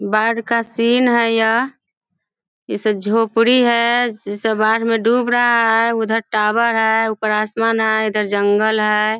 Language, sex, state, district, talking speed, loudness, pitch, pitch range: Hindi, female, Bihar, Sitamarhi, 145 wpm, -16 LUFS, 225 Hz, 215-235 Hz